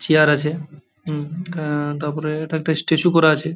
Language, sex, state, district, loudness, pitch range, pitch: Bengali, male, West Bengal, Paschim Medinipur, -20 LUFS, 150-160 Hz, 155 Hz